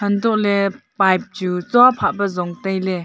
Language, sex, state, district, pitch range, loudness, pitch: Wancho, female, Arunachal Pradesh, Longding, 185-210 Hz, -18 LUFS, 200 Hz